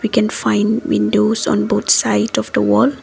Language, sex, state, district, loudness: English, female, Assam, Kamrup Metropolitan, -16 LUFS